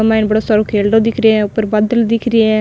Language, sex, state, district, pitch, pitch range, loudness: Rajasthani, female, Rajasthan, Nagaur, 220 Hz, 215-225 Hz, -13 LUFS